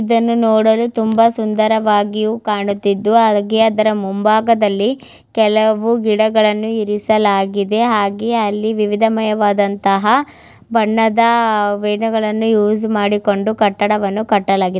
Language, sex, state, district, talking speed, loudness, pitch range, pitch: Kannada, female, Karnataka, Mysore, 85 wpm, -15 LUFS, 205-225 Hz, 215 Hz